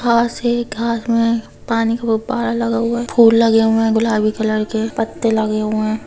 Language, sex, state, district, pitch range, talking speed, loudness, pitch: Hindi, female, Bihar, Sitamarhi, 220-235 Hz, 210 wpm, -17 LUFS, 230 Hz